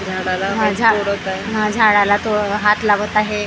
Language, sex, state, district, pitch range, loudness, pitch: Marathi, female, Maharashtra, Gondia, 200-215 Hz, -16 LUFS, 210 Hz